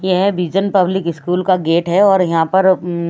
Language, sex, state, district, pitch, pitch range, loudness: Hindi, female, Chhattisgarh, Raipur, 185 Hz, 170-190 Hz, -15 LUFS